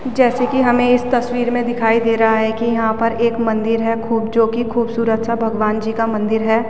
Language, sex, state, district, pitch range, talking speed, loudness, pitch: Hindi, female, Uttarakhand, Tehri Garhwal, 225-240 Hz, 235 wpm, -17 LUFS, 230 Hz